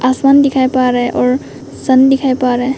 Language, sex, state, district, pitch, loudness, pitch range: Hindi, female, Arunachal Pradesh, Papum Pare, 255 Hz, -12 LUFS, 240-265 Hz